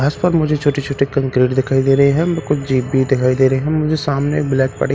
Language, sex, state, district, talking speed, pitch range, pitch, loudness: Hindi, male, Bihar, Katihar, 265 wpm, 135-150 Hz, 140 Hz, -16 LUFS